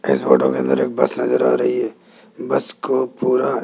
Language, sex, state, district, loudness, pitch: Hindi, male, Rajasthan, Jaipur, -18 LUFS, 125 Hz